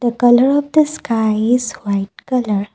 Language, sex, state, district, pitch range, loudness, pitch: English, female, Assam, Kamrup Metropolitan, 215-255 Hz, -16 LUFS, 240 Hz